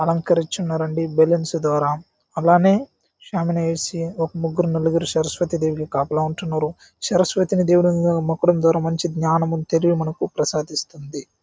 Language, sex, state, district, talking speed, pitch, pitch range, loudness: Telugu, male, Andhra Pradesh, Chittoor, 110 wpm, 165 Hz, 160-170 Hz, -20 LUFS